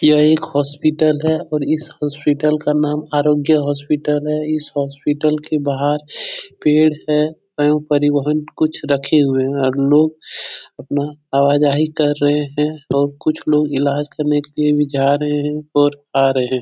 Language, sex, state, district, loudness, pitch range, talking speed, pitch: Hindi, male, Bihar, Jahanabad, -17 LUFS, 145-150 Hz, 165 wpm, 150 Hz